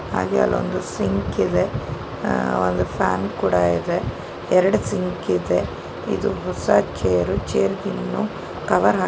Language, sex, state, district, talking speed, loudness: Kannada, female, Karnataka, Chamarajanagar, 120 wpm, -22 LUFS